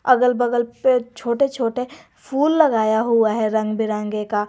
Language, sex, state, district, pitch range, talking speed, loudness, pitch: Hindi, female, Jharkhand, Garhwa, 220-255 Hz, 160 wpm, -19 LUFS, 235 Hz